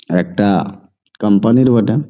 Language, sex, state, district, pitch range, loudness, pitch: Bengali, male, West Bengal, Jalpaiguri, 95-115 Hz, -14 LUFS, 100 Hz